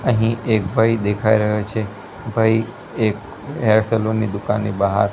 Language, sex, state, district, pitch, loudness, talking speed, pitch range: Gujarati, male, Gujarat, Gandhinagar, 110 Hz, -19 LUFS, 150 wpm, 105-115 Hz